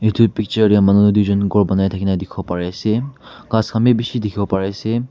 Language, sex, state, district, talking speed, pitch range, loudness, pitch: Nagamese, male, Nagaland, Kohima, 210 wpm, 100-115 Hz, -17 LUFS, 105 Hz